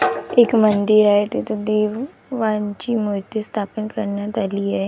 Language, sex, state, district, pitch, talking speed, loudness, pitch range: Marathi, female, Maharashtra, Gondia, 215 Hz, 125 wpm, -19 LUFS, 205-220 Hz